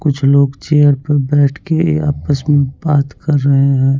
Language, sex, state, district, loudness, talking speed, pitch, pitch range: Hindi, male, Chandigarh, Chandigarh, -13 LUFS, 180 wpm, 145 Hz, 140-150 Hz